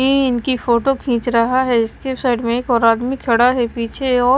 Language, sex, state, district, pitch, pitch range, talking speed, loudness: Hindi, female, Maharashtra, Washim, 245 Hz, 235-260 Hz, 220 wpm, -17 LUFS